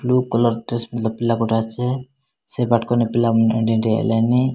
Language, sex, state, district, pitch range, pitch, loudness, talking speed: Odia, male, Odisha, Malkangiri, 115-125 Hz, 115 Hz, -19 LUFS, 130 wpm